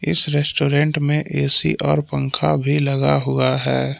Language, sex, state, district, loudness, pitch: Hindi, male, Jharkhand, Palamu, -17 LUFS, 135 Hz